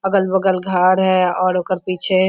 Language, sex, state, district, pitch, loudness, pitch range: Hindi, female, Jharkhand, Sahebganj, 185 Hz, -17 LUFS, 185-190 Hz